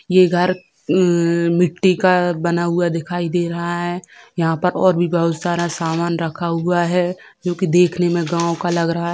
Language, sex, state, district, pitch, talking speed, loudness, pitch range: Hindi, female, Bihar, Sitamarhi, 175 Hz, 195 wpm, -18 LUFS, 170-180 Hz